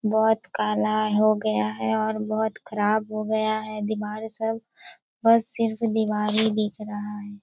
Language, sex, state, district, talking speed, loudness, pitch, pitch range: Hindi, female, Chhattisgarh, Raigarh, 160 wpm, -24 LUFS, 215 Hz, 210-220 Hz